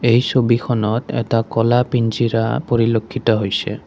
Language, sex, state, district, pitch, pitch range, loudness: Assamese, male, Assam, Kamrup Metropolitan, 115 Hz, 115-120 Hz, -18 LUFS